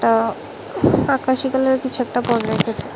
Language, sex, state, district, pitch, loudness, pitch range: Bengali, female, Tripura, West Tripura, 250 Hz, -19 LUFS, 225-260 Hz